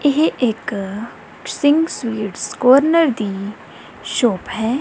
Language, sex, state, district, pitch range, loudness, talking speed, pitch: Punjabi, female, Punjab, Kapurthala, 210-285 Hz, -18 LUFS, 100 wpm, 240 Hz